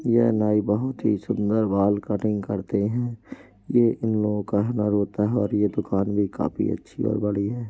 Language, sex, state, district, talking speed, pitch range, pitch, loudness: Hindi, male, Uttar Pradesh, Jalaun, 195 wpm, 100-115 Hz, 105 Hz, -24 LUFS